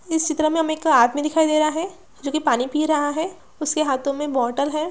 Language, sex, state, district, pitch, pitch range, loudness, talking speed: Hindi, female, Bihar, Gaya, 305 Hz, 290-320 Hz, -21 LUFS, 270 wpm